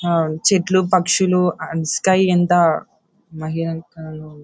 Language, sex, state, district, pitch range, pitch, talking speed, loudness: Telugu, male, Andhra Pradesh, Anantapur, 160-185 Hz, 170 Hz, 110 wpm, -17 LUFS